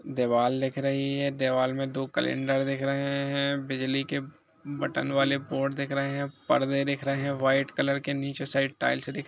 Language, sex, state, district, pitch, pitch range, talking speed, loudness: Hindi, male, Bihar, Gaya, 140 Hz, 135-140 Hz, 195 wpm, -28 LUFS